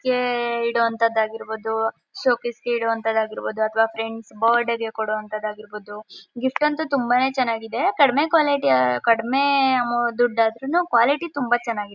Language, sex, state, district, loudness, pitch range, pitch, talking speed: Kannada, female, Karnataka, Mysore, -21 LUFS, 220-260 Hz, 235 Hz, 95 wpm